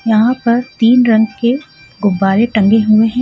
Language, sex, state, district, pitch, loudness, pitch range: Hindi, female, Jharkhand, Ranchi, 225 Hz, -12 LUFS, 215-240 Hz